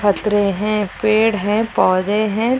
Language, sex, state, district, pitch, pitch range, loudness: Hindi, female, Chhattisgarh, Rajnandgaon, 210 Hz, 205-215 Hz, -17 LUFS